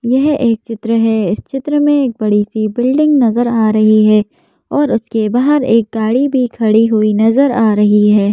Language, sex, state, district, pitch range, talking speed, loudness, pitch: Hindi, female, Madhya Pradesh, Bhopal, 215-260 Hz, 195 wpm, -12 LUFS, 225 Hz